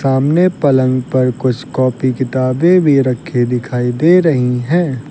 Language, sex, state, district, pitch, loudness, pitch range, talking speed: Hindi, male, Uttar Pradesh, Lucknow, 130 Hz, -14 LUFS, 125-150 Hz, 140 wpm